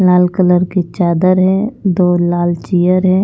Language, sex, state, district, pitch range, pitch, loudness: Hindi, female, Punjab, Pathankot, 175-185 Hz, 180 Hz, -13 LUFS